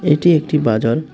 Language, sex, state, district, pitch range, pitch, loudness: Bengali, male, Tripura, West Tripura, 115-155 Hz, 150 Hz, -15 LUFS